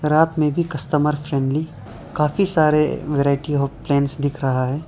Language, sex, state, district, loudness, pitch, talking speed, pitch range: Hindi, male, Arunachal Pradesh, Lower Dibang Valley, -20 LUFS, 150 Hz, 160 wpm, 140-155 Hz